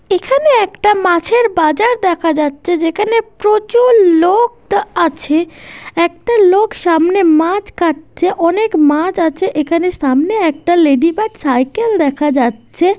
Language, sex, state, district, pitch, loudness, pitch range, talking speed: Bengali, female, West Bengal, North 24 Parganas, 345 Hz, -13 LUFS, 315-415 Hz, 125 wpm